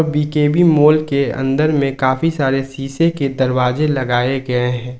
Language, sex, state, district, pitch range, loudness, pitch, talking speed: Hindi, male, Jharkhand, Ranchi, 130-150 Hz, -16 LUFS, 135 Hz, 155 wpm